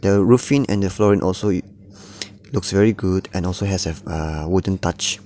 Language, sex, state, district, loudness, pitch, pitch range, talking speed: English, male, Nagaland, Dimapur, -20 LUFS, 100 Hz, 95-100 Hz, 195 wpm